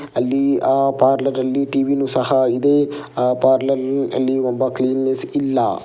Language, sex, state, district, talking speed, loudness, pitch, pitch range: Kannada, male, Karnataka, Dakshina Kannada, 155 wpm, -18 LUFS, 135 Hz, 130-140 Hz